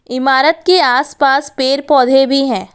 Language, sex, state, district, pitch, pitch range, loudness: Hindi, female, Assam, Kamrup Metropolitan, 275 Hz, 265-285 Hz, -12 LUFS